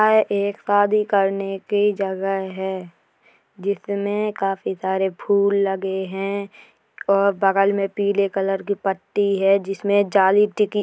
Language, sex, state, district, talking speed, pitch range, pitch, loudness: Hindi, female, Uttar Pradesh, Hamirpur, 140 wpm, 195-205 Hz, 200 Hz, -21 LUFS